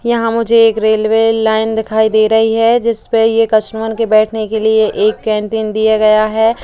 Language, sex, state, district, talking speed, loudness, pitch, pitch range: Hindi, female, Uttar Pradesh, Jalaun, 200 wpm, -12 LUFS, 220 Hz, 220-225 Hz